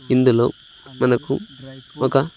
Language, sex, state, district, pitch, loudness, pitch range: Telugu, male, Andhra Pradesh, Sri Satya Sai, 130 Hz, -19 LUFS, 130-135 Hz